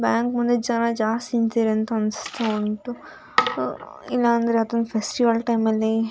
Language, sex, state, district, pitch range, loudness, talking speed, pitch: Kannada, female, Karnataka, Dakshina Kannada, 220-240 Hz, -22 LUFS, 145 wpm, 230 Hz